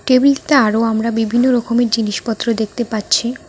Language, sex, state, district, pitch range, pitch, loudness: Bengali, female, West Bengal, Cooch Behar, 220-245 Hz, 230 Hz, -16 LUFS